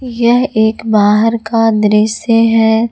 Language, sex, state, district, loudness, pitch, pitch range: Hindi, female, Jharkhand, Garhwa, -11 LUFS, 225 Hz, 220-230 Hz